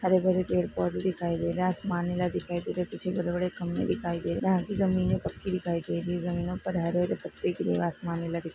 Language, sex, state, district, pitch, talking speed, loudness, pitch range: Hindi, female, Maharashtra, Sindhudurg, 175 Hz, 230 wpm, -30 LUFS, 170-185 Hz